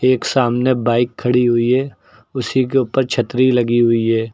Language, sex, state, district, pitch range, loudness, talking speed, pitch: Hindi, male, Uttar Pradesh, Lucknow, 120-130 Hz, -16 LUFS, 180 wpm, 125 Hz